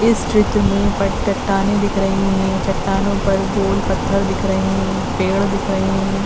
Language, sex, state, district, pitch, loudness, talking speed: Hindi, female, Uttar Pradesh, Hamirpur, 195 Hz, -17 LUFS, 180 wpm